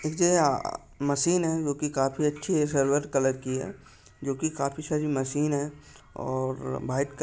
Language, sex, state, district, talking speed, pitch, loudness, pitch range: Hindi, male, Chhattisgarh, Bastar, 175 wpm, 145 Hz, -27 LUFS, 135-155 Hz